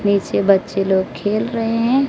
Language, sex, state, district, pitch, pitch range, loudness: Hindi, female, Odisha, Malkangiri, 205 Hz, 195-230 Hz, -18 LUFS